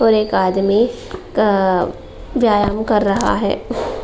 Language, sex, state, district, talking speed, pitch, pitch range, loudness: Hindi, female, Uttar Pradesh, Jalaun, 120 wpm, 215 Hz, 200-255 Hz, -17 LUFS